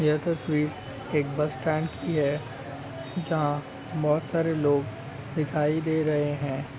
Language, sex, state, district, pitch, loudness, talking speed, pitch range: Hindi, male, Uttarakhand, Uttarkashi, 150 Hz, -28 LUFS, 130 wpm, 135-155 Hz